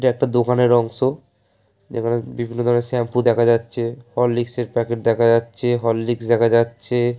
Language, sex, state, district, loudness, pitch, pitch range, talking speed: Bengali, male, West Bengal, Paschim Medinipur, -19 LUFS, 120 Hz, 115-120 Hz, 150 wpm